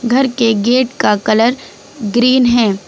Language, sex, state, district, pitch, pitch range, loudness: Hindi, female, Uttar Pradesh, Lucknow, 240 Hz, 220-255 Hz, -13 LUFS